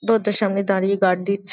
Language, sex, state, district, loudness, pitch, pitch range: Bengali, female, West Bengal, Jalpaiguri, -20 LUFS, 200 Hz, 195-205 Hz